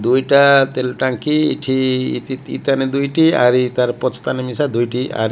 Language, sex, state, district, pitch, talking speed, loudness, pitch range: Odia, male, Odisha, Malkangiri, 130 Hz, 145 wpm, -16 LUFS, 125-140 Hz